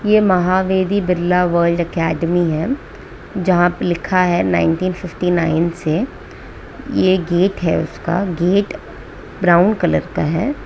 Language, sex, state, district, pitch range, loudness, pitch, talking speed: Hindi, female, West Bengal, Kolkata, 170-185 Hz, -17 LUFS, 180 Hz, 130 wpm